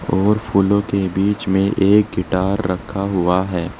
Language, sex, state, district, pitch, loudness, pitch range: Hindi, male, Uttar Pradesh, Saharanpur, 95 Hz, -18 LUFS, 90-100 Hz